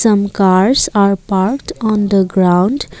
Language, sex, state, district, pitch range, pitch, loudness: English, female, Assam, Kamrup Metropolitan, 190-220 Hz, 200 Hz, -13 LUFS